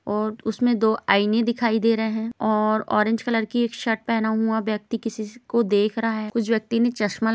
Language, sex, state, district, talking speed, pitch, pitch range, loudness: Hindi, female, Chhattisgarh, Rajnandgaon, 220 wpm, 225 Hz, 215-230 Hz, -22 LUFS